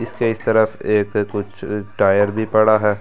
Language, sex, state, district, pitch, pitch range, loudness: Hindi, male, Delhi, New Delhi, 105 Hz, 105-110 Hz, -18 LUFS